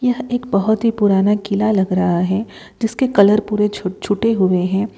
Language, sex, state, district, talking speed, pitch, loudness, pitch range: Hindi, female, Bihar, Saran, 195 wpm, 205 Hz, -17 LUFS, 195-220 Hz